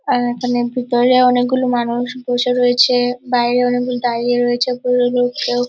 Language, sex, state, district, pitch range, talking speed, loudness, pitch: Bengali, female, West Bengal, Purulia, 245-250 Hz, 135 wpm, -16 LUFS, 245 Hz